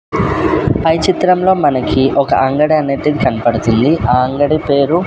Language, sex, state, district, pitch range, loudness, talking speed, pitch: Telugu, male, Andhra Pradesh, Sri Satya Sai, 130-165 Hz, -13 LUFS, 120 wpm, 145 Hz